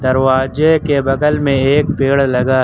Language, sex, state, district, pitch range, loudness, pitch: Hindi, male, Uttar Pradesh, Lucknow, 130-150 Hz, -14 LUFS, 135 Hz